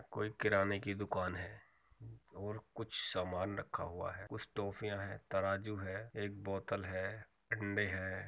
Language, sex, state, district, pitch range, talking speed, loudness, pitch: Hindi, male, Uttar Pradesh, Muzaffarnagar, 95-105 Hz, 150 wpm, -40 LUFS, 100 Hz